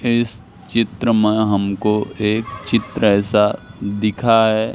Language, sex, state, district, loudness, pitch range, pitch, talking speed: Hindi, male, Madhya Pradesh, Katni, -18 LUFS, 105-115 Hz, 105 Hz, 115 wpm